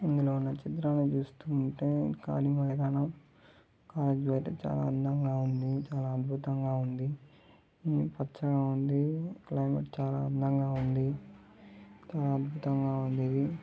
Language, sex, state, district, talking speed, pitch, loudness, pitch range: Telugu, male, Andhra Pradesh, Guntur, 90 wpm, 135 Hz, -32 LUFS, 130-145 Hz